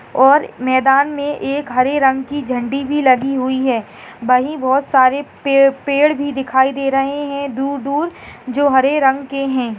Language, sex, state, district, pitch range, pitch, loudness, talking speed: Hindi, female, Bihar, Saharsa, 260-280 Hz, 270 Hz, -16 LUFS, 170 wpm